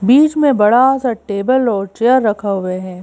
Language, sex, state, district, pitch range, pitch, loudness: Hindi, female, Madhya Pradesh, Bhopal, 200-260 Hz, 230 Hz, -14 LUFS